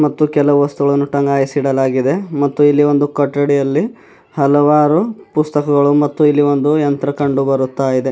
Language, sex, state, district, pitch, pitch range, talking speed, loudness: Kannada, male, Karnataka, Bidar, 145 Hz, 140-150 Hz, 125 wpm, -14 LUFS